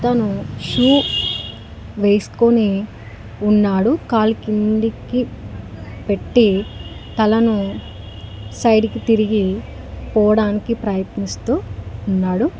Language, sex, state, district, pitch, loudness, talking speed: Telugu, female, Telangana, Mahabubabad, 205 Hz, -18 LUFS, 65 wpm